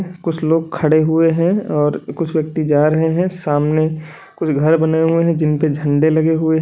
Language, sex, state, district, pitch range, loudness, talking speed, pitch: Hindi, male, Uttar Pradesh, Lalitpur, 155-165 Hz, -16 LUFS, 210 wpm, 160 Hz